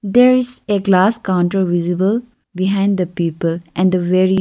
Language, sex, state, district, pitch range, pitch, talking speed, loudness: English, female, Arunachal Pradesh, Lower Dibang Valley, 180-205 Hz, 190 Hz, 165 wpm, -16 LUFS